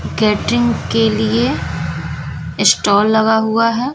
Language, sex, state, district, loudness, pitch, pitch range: Hindi, female, Bihar, West Champaran, -15 LUFS, 220 Hz, 220-235 Hz